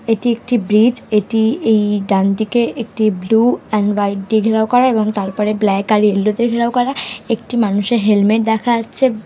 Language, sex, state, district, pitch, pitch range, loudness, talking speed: Bengali, female, West Bengal, Purulia, 220 Hz, 210-235 Hz, -15 LUFS, 175 wpm